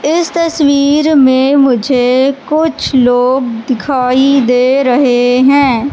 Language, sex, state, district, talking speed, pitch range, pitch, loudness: Hindi, female, Madhya Pradesh, Katni, 100 wpm, 250-285 Hz, 265 Hz, -10 LUFS